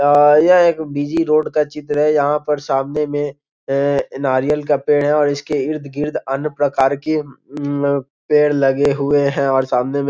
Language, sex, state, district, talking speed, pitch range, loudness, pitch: Hindi, male, Bihar, Gopalganj, 195 wpm, 140-150 Hz, -17 LUFS, 145 Hz